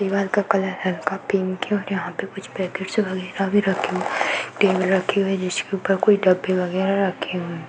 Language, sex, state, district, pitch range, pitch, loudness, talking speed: Hindi, female, Uttar Pradesh, Varanasi, 185-195 Hz, 195 Hz, -22 LUFS, 220 wpm